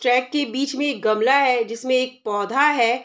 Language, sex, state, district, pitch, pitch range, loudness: Hindi, female, Bihar, Saharsa, 255 Hz, 235-275 Hz, -20 LUFS